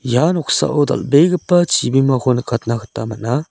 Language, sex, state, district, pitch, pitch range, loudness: Garo, male, Meghalaya, South Garo Hills, 135 Hz, 120-155 Hz, -16 LUFS